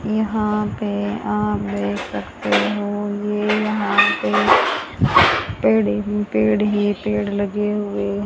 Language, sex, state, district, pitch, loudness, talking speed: Hindi, female, Haryana, Charkhi Dadri, 205 Hz, -19 LUFS, 125 wpm